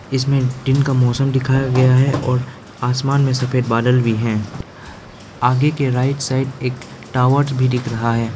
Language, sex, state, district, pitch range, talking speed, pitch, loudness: Hindi, male, Arunachal Pradesh, Lower Dibang Valley, 120-135 Hz, 170 wpm, 130 Hz, -17 LUFS